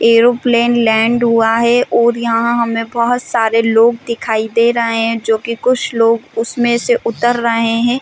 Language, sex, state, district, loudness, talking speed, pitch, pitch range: Hindi, female, Chhattisgarh, Bilaspur, -13 LUFS, 165 wpm, 235 Hz, 230-235 Hz